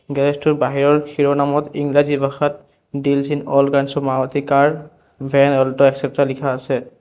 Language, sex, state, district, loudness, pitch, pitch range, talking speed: Assamese, male, Assam, Kamrup Metropolitan, -17 LUFS, 140 Hz, 140-145 Hz, 155 wpm